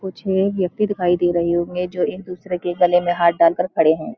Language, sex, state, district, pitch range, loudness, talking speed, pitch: Hindi, female, Uttarakhand, Uttarkashi, 175-185 Hz, -19 LUFS, 260 wpm, 180 Hz